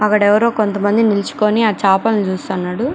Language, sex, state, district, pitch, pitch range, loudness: Telugu, female, Andhra Pradesh, Chittoor, 210 Hz, 200-220 Hz, -15 LUFS